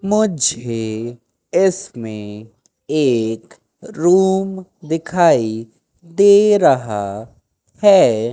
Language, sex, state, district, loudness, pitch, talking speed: Hindi, male, Madhya Pradesh, Katni, -16 LUFS, 120 Hz, 55 wpm